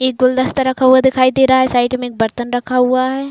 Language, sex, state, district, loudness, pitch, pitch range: Hindi, female, Uttar Pradesh, Budaun, -14 LUFS, 255 Hz, 250-260 Hz